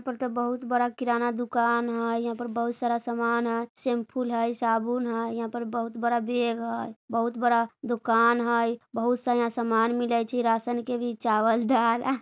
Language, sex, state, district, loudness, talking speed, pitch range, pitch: Bajjika, female, Bihar, Vaishali, -27 LUFS, 180 wpm, 230-240 Hz, 235 Hz